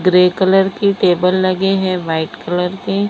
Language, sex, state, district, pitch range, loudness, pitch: Hindi, female, Maharashtra, Mumbai Suburban, 180-195 Hz, -15 LUFS, 185 Hz